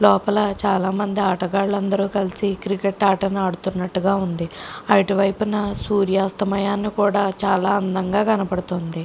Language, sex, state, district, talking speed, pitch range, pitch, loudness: Telugu, female, Andhra Pradesh, Krishna, 105 wpm, 190-205 Hz, 195 Hz, -21 LUFS